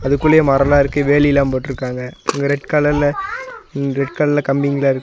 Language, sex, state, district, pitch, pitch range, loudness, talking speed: Tamil, male, Tamil Nadu, Nilgiris, 140 Hz, 135-145 Hz, -16 LUFS, 155 wpm